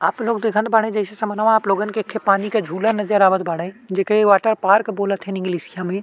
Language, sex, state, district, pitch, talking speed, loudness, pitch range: Bhojpuri, male, Uttar Pradesh, Deoria, 205 Hz, 220 wpm, -19 LUFS, 195-220 Hz